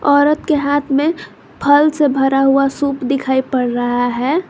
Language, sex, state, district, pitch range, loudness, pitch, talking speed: Hindi, female, Jharkhand, Garhwa, 265-290 Hz, -15 LUFS, 275 Hz, 175 wpm